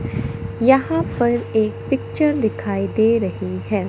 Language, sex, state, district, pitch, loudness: Hindi, male, Madhya Pradesh, Katni, 220 Hz, -20 LUFS